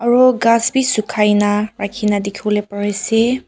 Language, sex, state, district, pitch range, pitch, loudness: Nagamese, female, Nagaland, Kohima, 205-235 Hz, 215 Hz, -16 LUFS